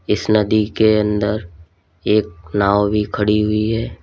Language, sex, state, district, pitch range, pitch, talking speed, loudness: Hindi, male, Uttar Pradesh, Lalitpur, 100-105 Hz, 105 Hz, 150 wpm, -17 LUFS